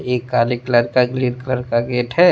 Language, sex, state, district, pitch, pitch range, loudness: Hindi, male, Tripura, West Tripura, 125 Hz, 120-125 Hz, -18 LUFS